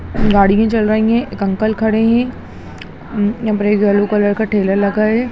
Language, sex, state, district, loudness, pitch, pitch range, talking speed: Hindi, female, Bihar, Gaya, -15 LUFS, 215 Hz, 205-220 Hz, 215 wpm